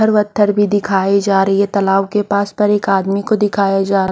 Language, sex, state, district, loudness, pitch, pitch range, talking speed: Hindi, female, Odisha, Khordha, -14 LUFS, 200 Hz, 195-205 Hz, 235 wpm